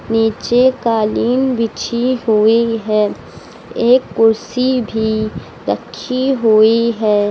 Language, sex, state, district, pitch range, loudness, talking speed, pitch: Hindi, female, Uttar Pradesh, Lucknow, 220-250 Hz, -15 LUFS, 90 wpm, 230 Hz